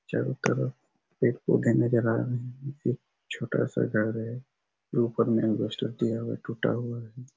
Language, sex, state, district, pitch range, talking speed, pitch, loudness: Hindi, male, Chhattisgarh, Raigarh, 110-125 Hz, 170 wpm, 115 Hz, -29 LUFS